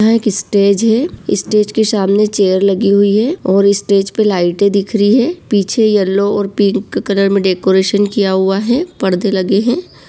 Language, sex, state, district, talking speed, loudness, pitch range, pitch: Hindi, female, Bihar, Begusarai, 185 wpm, -13 LUFS, 195-215 Hz, 200 Hz